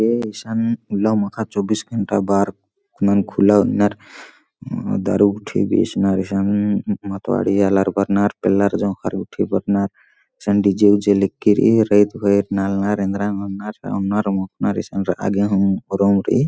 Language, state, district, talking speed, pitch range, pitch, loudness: Kurukh, Chhattisgarh, Jashpur, 140 wpm, 100-105 Hz, 100 Hz, -18 LUFS